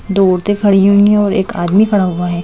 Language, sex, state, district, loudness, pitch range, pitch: Hindi, female, Madhya Pradesh, Bhopal, -12 LUFS, 185-205 Hz, 195 Hz